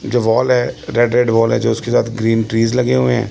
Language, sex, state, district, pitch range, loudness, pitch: Hindi, male, Chandigarh, Chandigarh, 115-120 Hz, -15 LUFS, 115 Hz